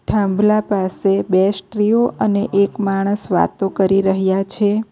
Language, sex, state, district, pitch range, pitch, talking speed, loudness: Gujarati, female, Gujarat, Navsari, 195-210 Hz, 200 Hz, 135 wpm, -17 LUFS